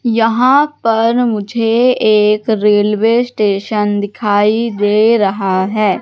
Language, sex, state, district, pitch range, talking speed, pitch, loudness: Hindi, female, Madhya Pradesh, Katni, 205-230 Hz, 100 wpm, 215 Hz, -13 LUFS